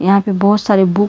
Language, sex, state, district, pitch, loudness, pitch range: Hindi, female, Karnataka, Bangalore, 200 Hz, -13 LUFS, 195-205 Hz